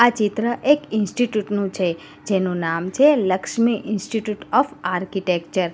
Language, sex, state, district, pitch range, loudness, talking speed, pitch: Gujarati, female, Gujarat, Valsad, 185-235 Hz, -21 LUFS, 145 wpm, 205 Hz